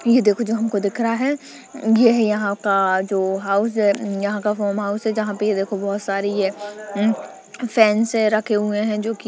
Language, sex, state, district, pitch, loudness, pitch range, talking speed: Hindi, female, Uttarakhand, Uttarkashi, 210 Hz, -20 LUFS, 200-225 Hz, 215 wpm